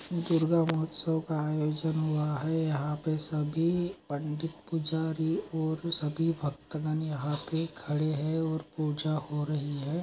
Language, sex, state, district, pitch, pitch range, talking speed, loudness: Magahi, male, Bihar, Gaya, 155 Hz, 150-160 Hz, 150 wpm, -31 LUFS